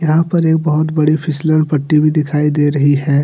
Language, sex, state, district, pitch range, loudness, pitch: Hindi, male, Jharkhand, Deoghar, 150-155 Hz, -14 LUFS, 155 Hz